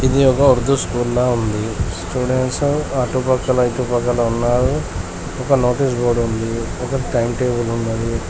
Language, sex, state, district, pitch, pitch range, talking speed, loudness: Telugu, male, Telangana, Komaram Bheem, 120 Hz, 115-130 Hz, 135 wpm, -18 LUFS